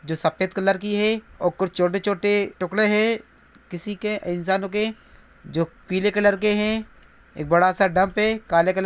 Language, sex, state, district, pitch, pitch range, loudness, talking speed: Hindi, male, Bihar, Araria, 200 Hz, 185-210 Hz, -22 LUFS, 175 wpm